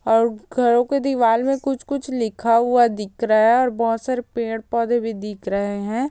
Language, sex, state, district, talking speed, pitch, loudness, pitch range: Hindi, female, Bihar, Jahanabad, 185 wpm, 235 Hz, -20 LUFS, 225-250 Hz